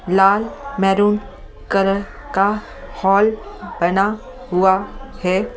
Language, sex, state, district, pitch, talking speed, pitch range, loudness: Hindi, female, Delhi, New Delhi, 200 Hz, 95 wpm, 195-215 Hz, -18 LUFS